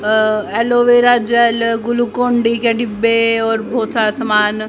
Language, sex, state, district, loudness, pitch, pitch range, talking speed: Hindi, female, Haryana, Rohtak, -14 LUFS, 230 Hz, 220-240 Hz, 130 wpm